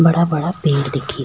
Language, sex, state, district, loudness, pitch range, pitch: Rajasthani, female, Rajasthan, Churu, -18 LUFS, 140-170 Hz, 155 Hz